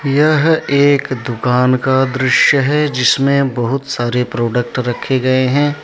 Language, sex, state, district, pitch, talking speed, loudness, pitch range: Hindi, male, Jharkhand, Deoghar, 130 Hz, 135 wpm, -14 LUFS, 125-140 Hz